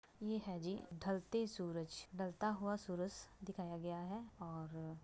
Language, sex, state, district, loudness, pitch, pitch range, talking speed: Hindi, female, Bihar, Begusarai, -45 LUFS, 185 Hz, 170-205 Hz, 155 wpm